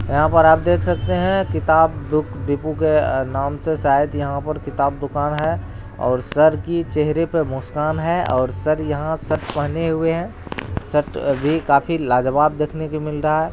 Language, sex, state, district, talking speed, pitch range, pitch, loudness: Hindi, male, Bihar, Araria, 170 wpm, 140-155 Hz, 150 Hz, -19 LUFS